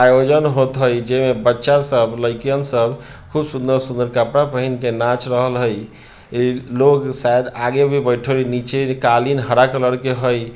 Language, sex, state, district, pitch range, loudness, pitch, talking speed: Bhojpuri, male, Bihar, Sitamarhi, 120-135 Hz, -17 LUFS, 125 Hz, 165 wpm